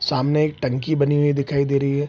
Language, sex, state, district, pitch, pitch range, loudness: Hindi, male, Bihar, Araria, 145 Hz, 140-145 Hz, -20 LUFS